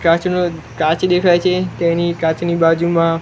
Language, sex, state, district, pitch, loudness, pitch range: Gujarati, male, Gujarat, Gandhinagar, 170 Hz, -16 LUFS, 165-180 Hz